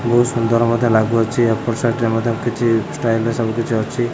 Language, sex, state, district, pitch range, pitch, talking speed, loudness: Odia, male, Odisha, Khordha, 115-120 Hz, 115 Hz, 205 wpm, -17 LUFS